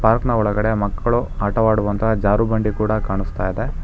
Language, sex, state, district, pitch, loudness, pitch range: Kannada, male, Karnataka, Bangalore, 110 Hz, -19 LUFS, 100-110 Hz